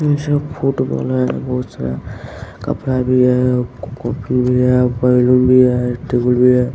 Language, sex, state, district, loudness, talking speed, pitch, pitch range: Hindi, male, Bihar, West Champaran, -15 LUFS, 140 wpm, 125 Hz, 125-130 Hz